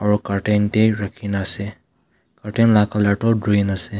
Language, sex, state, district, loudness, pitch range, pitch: Nagamese, male, Nagaland, Kohima, -19 LUFS, 100-105 Hz, 105 Hz